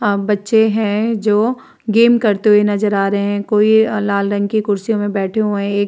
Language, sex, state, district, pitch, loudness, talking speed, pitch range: Hindi, female, Uttar Pradesh, Varanasi, 210 Hz, -15 LUFS, 215 wpm, 205-220 Hz